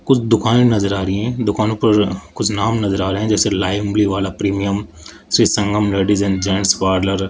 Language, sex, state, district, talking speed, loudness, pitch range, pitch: Hindi, male, Rajasthan, Jaipur, 205 wpm, -17 LUFS, 95-110 Hz, 100 Hz